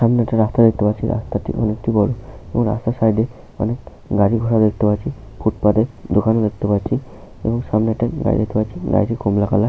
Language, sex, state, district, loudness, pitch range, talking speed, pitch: Bengali, male, West Bengal, Paschim Medinipur, -19 LUFS, 105-115 Hz, 180 wpm, 110 Hz